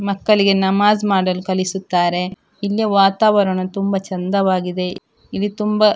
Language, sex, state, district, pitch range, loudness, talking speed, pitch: Kannada, female, Karnataka, Dakshina Kannada, 185-205 Hz, -17 LUFS, 110 wpm, 195 Hz